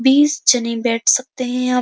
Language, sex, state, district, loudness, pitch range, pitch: Hindi, female, Uttar Pradesh, Jyotiba Phule Nagar, -16 LUFS, 240-265 Hz, 250 Hz